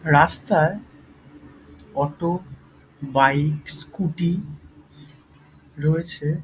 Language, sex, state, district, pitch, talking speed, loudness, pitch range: Bengali, male, West Bengal, Purulia, 150 Hz, 45 wpm, -22 LUFS, 140-165 Hz